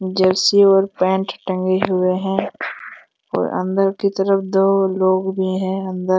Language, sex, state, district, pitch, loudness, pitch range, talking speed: Hindi, male, Jharkhand, Jamtara, 190 Hz, -18 LUFS, 185-195 Hz, 155 wpm